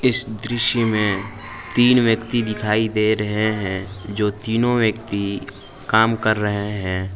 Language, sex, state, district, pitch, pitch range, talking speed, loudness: Hindi, male, Jharkhand, Palamu, 110 Hz, 105-115 Hz, 135 wpm, -20 LUFS